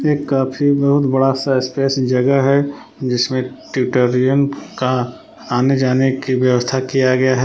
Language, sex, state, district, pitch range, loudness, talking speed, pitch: Hindi, male, Jharkhand, Palamu, 130-135 Hz, -16 LUFS, 130 wpm, 130 Hz